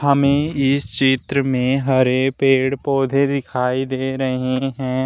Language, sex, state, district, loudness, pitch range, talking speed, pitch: Hindi, male, Uttar Pradesh, Shamli, -18 LUFS, 130-140 Hz, 130 wpm, 135 Hz